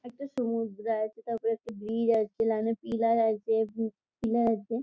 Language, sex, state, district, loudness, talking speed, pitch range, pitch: Bengali, female, West Bengal, Jhargram, -30 LUFS, 150 wpm, 220-230 Hz, 225 Hz